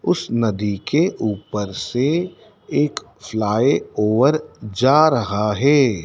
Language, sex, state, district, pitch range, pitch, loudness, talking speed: Hindi, male, Madhya Pradesh, Dhar, 105-140 Hz, 115 Hz, -19 LUFS, 110 wpm